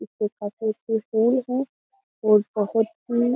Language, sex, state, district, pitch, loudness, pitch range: Hindi, female, Uttar Pradesh, Jyotiba Phule Nagar, 225 Hz, -24 LUFS, 215-245 Hz